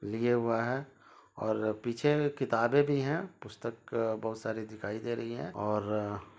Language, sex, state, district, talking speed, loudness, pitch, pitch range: Hindi, male, Jharkhand, Sahebganj, 170 wpm, -32 LUFS, 115 Hz, 110-130 Hz